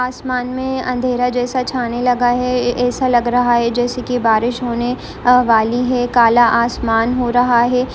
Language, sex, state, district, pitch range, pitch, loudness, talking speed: Hindi, female, Rajasthan, Churu, 240-250 Hz, 245 Hz, -15 LUFS, 165 wpm